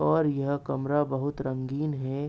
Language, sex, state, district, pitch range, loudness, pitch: Hindi, male, Uttar Pradesh, Ghazipur, 135-145 Hz, -29 LUFS, 140 Hz